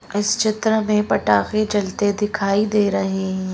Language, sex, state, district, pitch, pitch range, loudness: Hindi, female, Madhya Pradesh, Bhopal, 205 Hz, 195-215 Hz, -19 LUFS